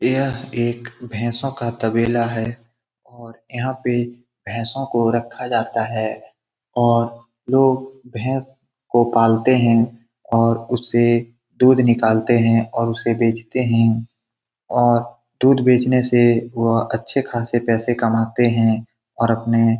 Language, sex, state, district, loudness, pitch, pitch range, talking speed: Hindi, male, Bihar, Lakhisarai, -19 LUFS, 120 Hz, 115-120 Hz, 125 wpm